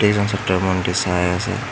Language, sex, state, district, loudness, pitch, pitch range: Assamese, male, Assam, Hailakandi, -19 LUFS, 95 Hz, 90-105 Hz